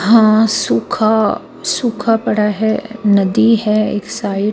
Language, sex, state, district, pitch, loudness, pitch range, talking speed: Hindi, female, Bihar, Patna, 215 Hz, -14 LUFS, 205-225 Hz, 130 wpm